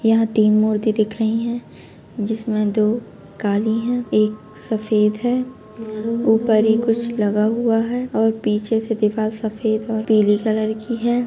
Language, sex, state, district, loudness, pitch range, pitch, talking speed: Kumaoni, female, Uttarakhand, Tehri Garhwal, -19 LUFS, 215-230 Hz, 220 Hz, 155 wpm